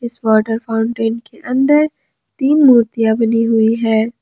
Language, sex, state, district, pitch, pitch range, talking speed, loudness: Hindi, female, Jharkhand, Ranchi, 230 Hz, 225-255 Hz, 140 wpm, -14 LUFS